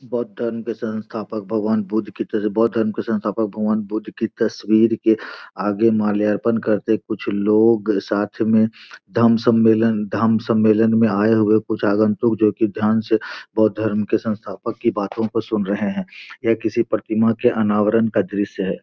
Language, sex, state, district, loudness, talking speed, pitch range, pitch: Hindi, male, Bihar, Gopalganj, -19 LUFS, 165 wpm, 105-115 Hz, 110 Hz